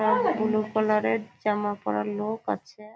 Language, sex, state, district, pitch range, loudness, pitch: Bengali, female, West Bengal, Kolkata, 205-215 Hz, -27 LUFS, 215 Hz